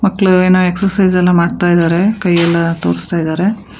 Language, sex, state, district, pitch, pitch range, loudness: Kannada, female, Karnataka, Bangalore, 180 Hz, 170-190 Hz, -12 LUFS